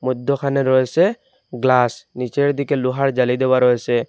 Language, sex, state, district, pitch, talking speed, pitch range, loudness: Bengali, male, Assam, Hailakandi, 130 Hz, 130 wpm, 125-140 Hz, -18 LUFS